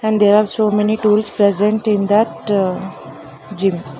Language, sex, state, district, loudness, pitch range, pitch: English, female, Karnataka, Bangalore, -16 LUFS, 195-215 Hz, 210 Hz